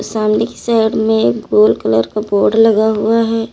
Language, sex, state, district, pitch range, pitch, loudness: Hindi, female, Uttar Pradesh, Lalitpur, 210-225 Hz, 220 Hz, -13 LUFS